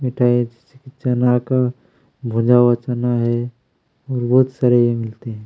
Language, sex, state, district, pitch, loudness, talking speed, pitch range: Hindi, male, Chhattisgarh, Kabirdham, 125 Hz, -18 LUFS, 145 wpm, 120-130 Hz